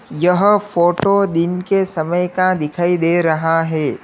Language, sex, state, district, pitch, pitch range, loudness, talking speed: Hindi, male, Uttar Pradesh, Lalitpur, 175 Hz, 165-185 Hz, -16 LUFS, 150 wpm